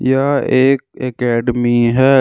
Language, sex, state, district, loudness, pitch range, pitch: Hindi, male, Jharkhand, Deoghar, -14 LUFS, 120-135 Hz, 130 Hz